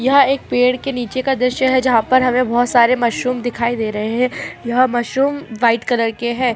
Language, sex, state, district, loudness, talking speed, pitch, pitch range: Chhattisgarhi, female, Chhattisgarh, Bilaspur, -16 LUFS, 220 wpm, 250 Hz, 235-255 Hz